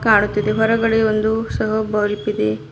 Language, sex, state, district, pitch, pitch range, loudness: Kannada, female, Karnataka, Bidar, 215 Hz, 210-220 Hz, -18 LUFS